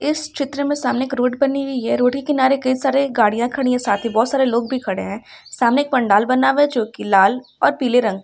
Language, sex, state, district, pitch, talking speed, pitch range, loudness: Hindi, female, Uttar Pradesh, Ghazipur, 255 Hz, 270 wpm, 235-275 Hz, -18 LUFS